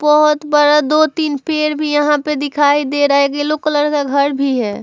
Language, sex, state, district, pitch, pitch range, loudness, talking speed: Hindi, female, Uttar Pradesh, Muzaffarnagar, 295 Hz, 285-300 Hz, -14 LUFS, 225 wpm